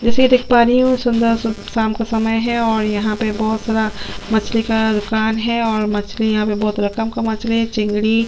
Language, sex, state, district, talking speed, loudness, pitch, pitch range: Hindi, female, Chhattisgarh, Sukma, 215 wpm, -17 LUFS, 225 Hz, 215-230 Hz